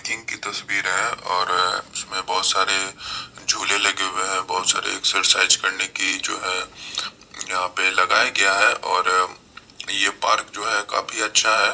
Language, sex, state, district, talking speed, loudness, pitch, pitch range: Hindi, male, Bihar, Madhepura, 160 wpm, -20 LUFS, 95 Hz, 90-95 Hz